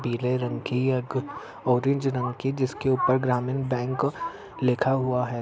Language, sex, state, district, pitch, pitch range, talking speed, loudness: Hindi, male, Uttar Pradesh, Etah, 130 Hz, 125-135 Hz, 155 wpm, -26 LUFS